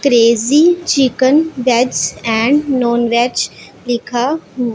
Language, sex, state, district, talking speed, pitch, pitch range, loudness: Hindi, female, Punjab, Pathankot, 90 wpm, 250 Hz, 240-280 Hz, -14 LUFS